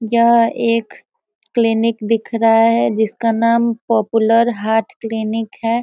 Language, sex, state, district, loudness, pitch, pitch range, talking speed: Hindi, female, Bihar, Sitamarhi, -16 LUFS, 230 Hz, 225-235 Hz, 125 wpm